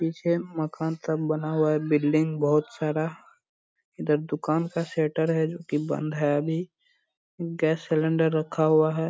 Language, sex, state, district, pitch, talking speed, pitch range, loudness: Hindi, male, Bihar, Purnia, 155 Hz, 160 wpm, 155-165 Hz, -26 LUFS